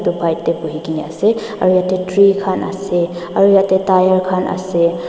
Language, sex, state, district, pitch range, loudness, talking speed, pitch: Nagamese, female, Nagaland, Dimapur, 170-195 Hz, -15 LUFS, 140 wpm, 185 Hz